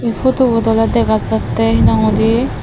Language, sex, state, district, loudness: Chakma, female, Tripura, Dhalai, -14 LUFS